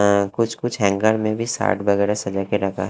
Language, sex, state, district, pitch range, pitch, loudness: Hindi, male, Haryana, Rohtak, 100-110 Hz, 105 Hz, -20 LUFS